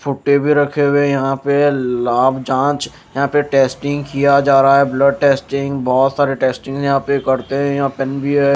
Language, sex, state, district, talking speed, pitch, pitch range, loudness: Hindi, male, Maharashtra, Mumbai Suburban, 215 wpm, 140 Hz, 135-140 Hz, -15 LUFS